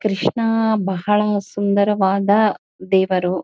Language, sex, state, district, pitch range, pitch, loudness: Kannada, female, Karnataka, Mysore, 190-210 Hz, 200 Hz, -18 LUFS